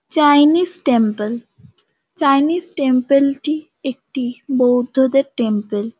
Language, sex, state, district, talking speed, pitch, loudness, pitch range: Bengali, female, West Bengal, Kolkata, 90 wpm, 270 Hz, -17 LUFS, 245-290 Hz